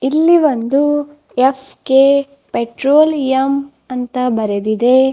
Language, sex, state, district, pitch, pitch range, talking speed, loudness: Kannada, female, Karnataka, Bidar, 265 Hz, 250-280 Hz, 70 wpm, -14 LUFS